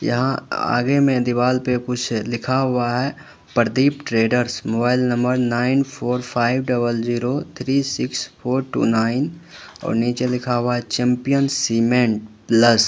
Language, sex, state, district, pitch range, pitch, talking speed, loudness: Hindi, male, Uttar Pradesh, Lalitpur, 120-130 Hz, 125 Hz, 140 wpm, -20 LUFS